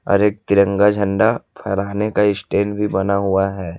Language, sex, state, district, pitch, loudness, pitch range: Hindi, male, Chhattisgarh, Raipur, 100 Hz, -18 LUFS, 100-105 Hz